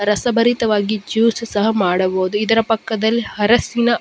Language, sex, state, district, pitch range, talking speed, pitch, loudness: Kannada, female, Karnataka, Dakshina Kannada, 205-230 Hz, 120 wpm, 220 Hz, -17 LUFS